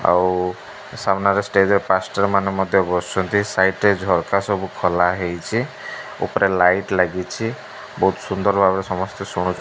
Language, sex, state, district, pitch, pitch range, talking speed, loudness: Odia, male, Odisha, Malkangiri, 95 Hz, 90-100 Hz, 150 wpm, -19 LUFS